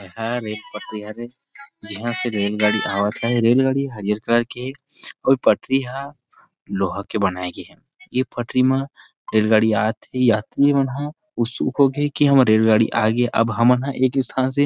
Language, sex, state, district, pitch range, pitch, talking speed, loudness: Chhattisgarhi, male, Chhattisgarh, Rajnandgaon, 110-135 Hz, 120 Hz, 180 wpm, -20 LUFS